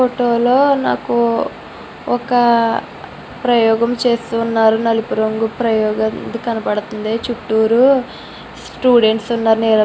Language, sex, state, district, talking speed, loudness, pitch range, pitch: Telugu, female, Andhra Pradesh, Srikakulam, 75 wpm, -16 LUFS, 220-240 Hz, 230 Hz